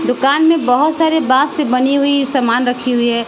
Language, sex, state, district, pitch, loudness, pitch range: Hindi, female, Bihar, West Champaran, 265 Hz, -14 LUFS, 250-295 Hz